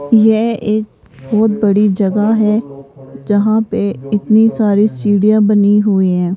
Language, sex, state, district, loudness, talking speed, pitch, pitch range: Hindi, female, Rajasthan, Jaipur, -13 LUFS, 130 wpm, 210 Hz, 200-215 Hz